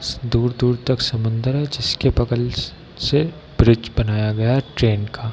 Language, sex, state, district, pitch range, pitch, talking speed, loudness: Hindi, male, Bihar, Darbhanga, 115-130 Hz, 120 Hz, 155 wpm, -20 LUFS